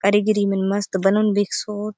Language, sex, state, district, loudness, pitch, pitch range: Halbi, female, Chhattisgarh, Bastar, -20 LUFS, 205 Hz, 195-210 Hz